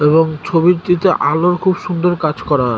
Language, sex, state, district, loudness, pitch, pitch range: Bengali, male, West Bengal, North 24 Parganas, -15 LUFS, 170 Hz, 155-180 Hz